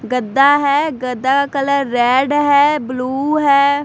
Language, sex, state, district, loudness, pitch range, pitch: Hindi, female, Bihar, Katihar, -15 LUFS, 255-285 Hz, 280 Hz